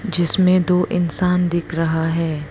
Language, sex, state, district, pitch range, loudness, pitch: Hindi, female, Arunachal Pradesh, Lower Dibang Valley, 165-180 Hz, -17 LUFS, 175 Hz